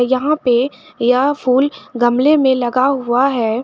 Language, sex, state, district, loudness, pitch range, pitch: Hindi, female, Jharkhand, Garhwa, -15 LUFS, 245-275 Hz, 255 Hz